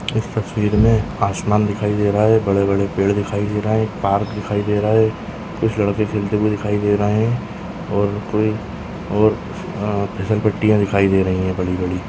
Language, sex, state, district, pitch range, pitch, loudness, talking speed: Hindi, male, Maharashtra, Nagpur, 100-110 Hz, 105 Hz, -18 LUFS, 190 wpm